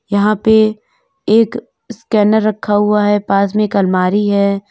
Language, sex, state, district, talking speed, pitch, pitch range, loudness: Hindi, female, Uttar Pradesh, Lalitpur, 140 wpm, 210 Hz, 200-215 Hz, -13 LUFS